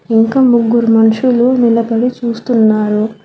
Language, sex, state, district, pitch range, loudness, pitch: Telugu, female, Telangana, Hyderabad, 225-240 Hz, -11 LUFS, 230 Hz